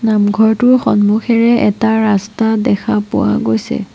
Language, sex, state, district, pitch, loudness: Assamese, female, Assam, Sonitpur, 215 Hz, -13 LUFS